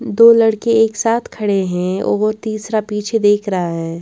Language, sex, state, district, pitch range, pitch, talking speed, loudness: Hindi, female, Bihar, West Champaran, 195-225 Hz, 215 Hz, 180 wpm, -15 LUFS